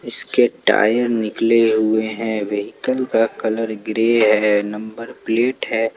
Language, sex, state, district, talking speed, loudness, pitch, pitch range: Hindi, male, Jharkhand, Palamu, 130 wpm, -18 LUFS, 110 Hz, 110-115 Hz